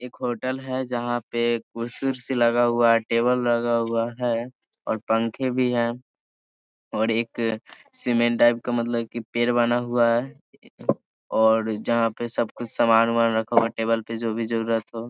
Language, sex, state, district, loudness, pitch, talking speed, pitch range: Hindi, male, Bihar, Sitamarhi, -24 LUFS, 120 Hz, 180 wpm, 115-120 Hz